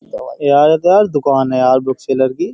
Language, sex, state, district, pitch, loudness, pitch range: Hindi, male, Uttar Pradesh, Jyotiba Phule Nagar, 140 Hz, -13 LUFS, 130-160 Hz